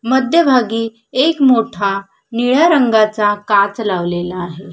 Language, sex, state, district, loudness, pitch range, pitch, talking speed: Marathi, female, Maharashtra, Solapur, -14 LUFS, 200-255 Hz, 225 Hz, 100 wpm